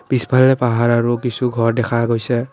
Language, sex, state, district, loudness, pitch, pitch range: Assamese, male, Assam, Kamrup Metropolitan, -16 LUFS, 120 Hz, 115-125 Hz